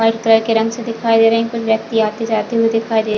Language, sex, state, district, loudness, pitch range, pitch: Hindi, female, Chhattisgarh, Bilaspur, -15 LUFS, 220-230 Hz, 225 Hz